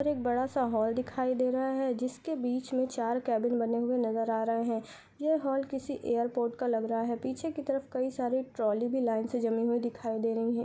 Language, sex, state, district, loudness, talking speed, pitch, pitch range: Hindi, female, Uttar Pradesh, Budaun, -31 LUFS, 235 wpm, 245 Hz, 230-260 Hz